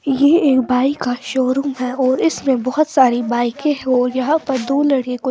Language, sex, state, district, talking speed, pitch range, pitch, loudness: Hindi, female, Bihar, Kaimur, 205 wpm, 250-280 Hz, 260 Hz, -17 LUFS